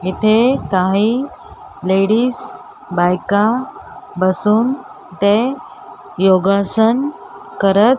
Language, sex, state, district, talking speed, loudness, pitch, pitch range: Marathi, female, Maharashtra, Mumbai Suburban, 65 wpm, -15 LUFS, 210 Hz, 190-245 Hz